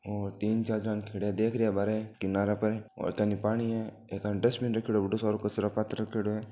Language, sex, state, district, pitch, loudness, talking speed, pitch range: Marwari, male, Rajasthan, Nagaur, 105 Hz, -31 LUFS, 250 wpm, 105-110 Hz